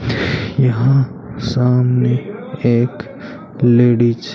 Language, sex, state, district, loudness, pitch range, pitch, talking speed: Hindi, male, Rajasthan, Bikaner, -15 LUFS, 120-130 Hz, 125 Hz, 70 wpm